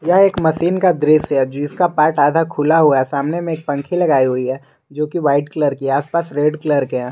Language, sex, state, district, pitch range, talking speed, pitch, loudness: Hindi, male, Jharkhand, Garhwa, 140-165 Hz, 255 wpm, 150 Hz, -16 LUFS